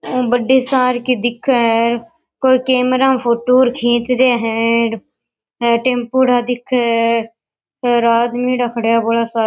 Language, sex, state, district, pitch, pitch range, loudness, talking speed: Rajasthani, female, Rajasthan, Nagaur, 240 Hz, 230-255 Hz, -15 LUFS, 135 wpm